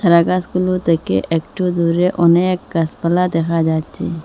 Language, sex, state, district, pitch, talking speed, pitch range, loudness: Bengali, female, Assam, Hailakandi, 170 Hz, 125 wpm, 165-180 Hz, -16 LUFS